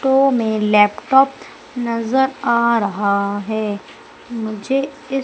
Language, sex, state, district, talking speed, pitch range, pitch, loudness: Hindi, female, Madhya Pradesh, Umaria, 105 wpm, 210-265 Hz, 230 Hz, -18 LUFS